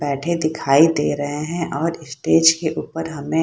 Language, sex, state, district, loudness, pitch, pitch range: Hindi, female, Bihar, Saharsa, -19 LUFS, 160 Hz, 145-165 Hz